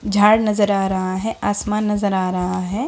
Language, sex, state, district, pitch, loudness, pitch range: Hindi, female, Bihar, Jahanabad, 205 Hz, -19 LUFS, 190-210 Hz